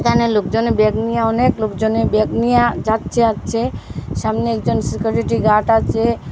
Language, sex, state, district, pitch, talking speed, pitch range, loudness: Bengali, female, Assam, Hailakandi, 225 Hz, 140 wpm, 215-235 Hz, -17 LUFS